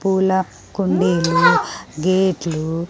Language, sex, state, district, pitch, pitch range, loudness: Telugu, female, Andhra Pradesh, Sri Satya Sai, 180 Hz, 170-190 Hz, -18 LUFS